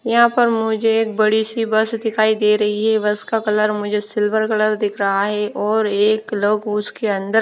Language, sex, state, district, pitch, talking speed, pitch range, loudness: Hindi, female, Odisha, Nuapada, 215 Hz, 200 wpm, 210-220 Hz, -18 LUFS